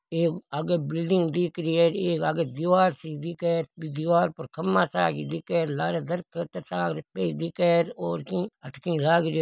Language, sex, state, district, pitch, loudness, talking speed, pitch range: Marwari, male, Rajasthan, Nagaur, 165 Hz, -26 LUFS, 170 wpm, 155-175 Hz